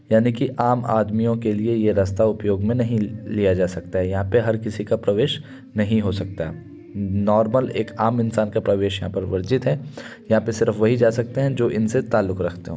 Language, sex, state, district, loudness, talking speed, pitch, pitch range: Hindi, male, Uttar Pradesh, Varanasi, -21 LUFS, 210 wpm, 110 Hz, 100-120 Hz